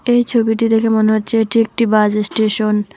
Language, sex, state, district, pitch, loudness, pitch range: Bengali, female, West Bengal, Alipurduar, 220 Hz, -15 LUFS, 215-230 Hz